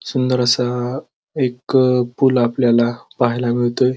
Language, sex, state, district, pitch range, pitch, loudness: Marathi, male, Maharashtra, Pune, 120-130 Hz, 125 Hz, -17 LUFS